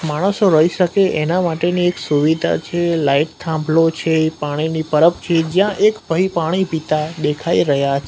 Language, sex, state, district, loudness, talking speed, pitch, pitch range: Gujarati, male, Gujarat, Gandhinagar, -17 LUFS, 165 wpm, 165 Hz, 155-175 Hz